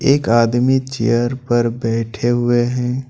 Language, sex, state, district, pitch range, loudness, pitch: Hindi, male, Jharkhand, Ranchi, 115-130 Hz, -17 LUFS, 120 Hz